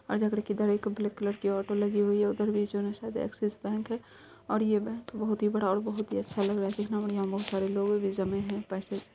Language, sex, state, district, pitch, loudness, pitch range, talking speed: Hindi, female, Bihar, Saharsa, 205 Hz, -31 LUFS, 200-215 Hz, 260 wpm